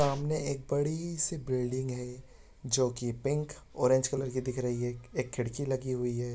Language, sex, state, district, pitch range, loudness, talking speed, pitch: Hindi, male, Uttarakhand, Tehri Garhwal, 125-140 Hz, -32 LUFS, 180 wpm, 130 Hz